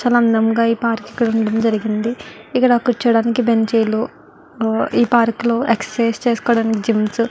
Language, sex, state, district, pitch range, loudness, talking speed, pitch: Telugu, female, Andhra Pradesh, Guntur, 225-240 Hz, -17 LUFS, 150 wpm, 230 Hz